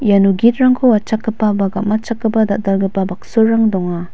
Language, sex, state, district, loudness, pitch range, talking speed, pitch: Garo, female, Meghalaya, West Garo Hills, -15 LUFS, 195-225 Hz, 115 wpm, 215 Hz